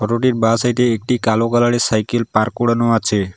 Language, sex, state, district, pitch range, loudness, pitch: Bengali, male, West Bengal, Alipurduar, 110-120 Hz, -16 LUFS, 115 Hz